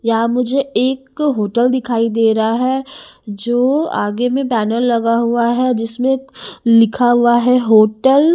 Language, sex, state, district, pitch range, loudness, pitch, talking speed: Hindi, female, Haryana, Charkhi Dadri, 230-260 Hz, -15 LUFS, 240 Hz, 150 wpm